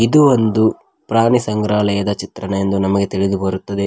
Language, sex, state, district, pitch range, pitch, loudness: Kannada, male, Karnataka, Koppal, 100-110 Hz, 100 Hz, -16 LUFS